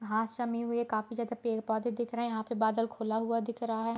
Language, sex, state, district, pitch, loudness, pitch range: Hindi, female, Bihar, East Champaran, 230 Hz, -33 LUFS, 220-235 Hz